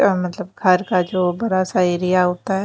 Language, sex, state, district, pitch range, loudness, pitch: Hindi, female, Maharashtra, Mumbai Suburban, 180-195 Hz, -19 LUFS, 185 Hz